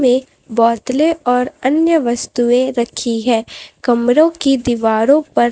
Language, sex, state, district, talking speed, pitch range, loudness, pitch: Hindi, female, Chhattisgarh, Raipur, 110 wpm, 235-275 Hz, -15 LUFS, 250 Hz